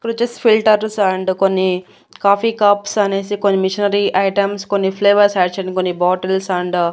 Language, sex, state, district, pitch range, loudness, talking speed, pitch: Telugu, female, Andhra Pradesh, Annamaya, 185-205 Hz, -16 LUFS, 155 wpm, 195 Hz